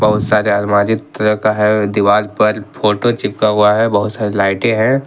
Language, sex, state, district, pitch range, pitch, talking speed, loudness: Hindi, male, Jharkhand, Ranchi, 105-110 Hz, 105 Hz, 190 wpm, -14 LUFS